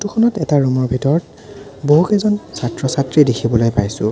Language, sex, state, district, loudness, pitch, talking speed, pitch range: Assamese, male, Assam, Sonitpur, -16 LUFS, 140 Hz, 130 wpm, 125-160 Hz